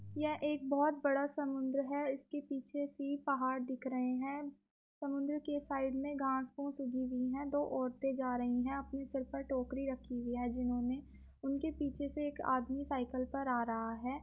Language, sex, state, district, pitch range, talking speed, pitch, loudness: Hindi, female, Uttar Pradesh, Muzaffarnagar, 255-285 Hz, 195 wpm, 275 Hz, -38 LUFS